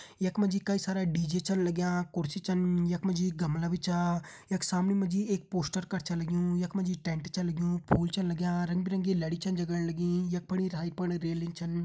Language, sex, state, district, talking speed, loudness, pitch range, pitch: Hindi, male, Uttarakhand, Uttarkashi, 230 wpm, -31 LUFS, 170-185 Hz, 180 Hz